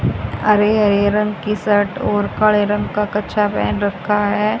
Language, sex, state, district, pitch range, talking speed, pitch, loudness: Hindi, female, Haryana, Jhajjar, 205-210 Hz, 170 wpm, 210 Hz, -17 LUFS